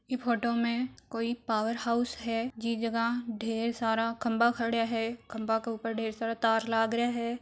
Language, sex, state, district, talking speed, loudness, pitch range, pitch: Marwari, female, Rajasthan, Churu, 185 wpm, -31 LUFS, 225-235 Hz, 230 Hz